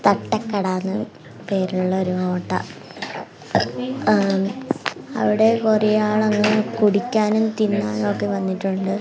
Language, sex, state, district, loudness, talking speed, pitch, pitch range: Malayalam, female, Kerala, Kasaragod, -21 LUFS, 95 wpm, 205 Hz, 185-215 Hz